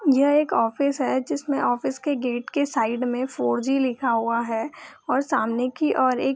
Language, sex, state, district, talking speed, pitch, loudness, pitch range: Hindi, female, Bihar, Gopalganj, 210 wpm, 260 Hz, -23 LUFS, 240-280 Hz